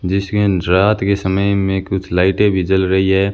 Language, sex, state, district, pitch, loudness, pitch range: Hindi, male, Rajasthan, Bikaner, 95 Hz, -15 LUFS, 95-100 Hz